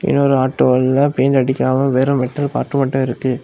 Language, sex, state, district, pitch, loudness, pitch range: Tamil, male, Tamil Nadu, Kanyakumari, 135 Hz, -16 LUFS, 130-140 Hz